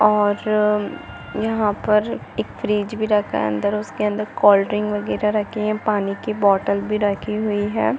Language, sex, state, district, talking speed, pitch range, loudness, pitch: Hindi, female, Chhattisgarh, Bastar, 145 wpm, 205-210 Hz, -20 LUFS, 210 Hz